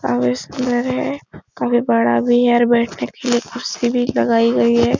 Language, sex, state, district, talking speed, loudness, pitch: Hindi, female, Uttar Pradesh, Etah, 190 wpm, -17 LUFS, 230 Hz